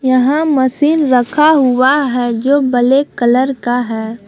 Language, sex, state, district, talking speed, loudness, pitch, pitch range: Hindi, female, Jharkhand, Palamu, 140 wpm, -12 LUFS, 260 Hz, 245-280 Hz